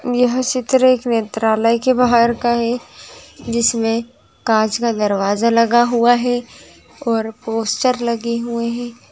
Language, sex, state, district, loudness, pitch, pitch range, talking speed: Hindi, female, Andhra Pradesh, Chittoor, -17 LUFS, 235 Hz, 230-245 Hz, 130 wpm